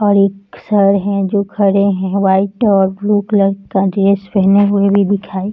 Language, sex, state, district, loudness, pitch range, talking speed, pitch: Hindi, female, Uttar Pradesh, Muzaffarnagar, -13 LUFS, 195-200 Hz, 195 wpm, 200 Hz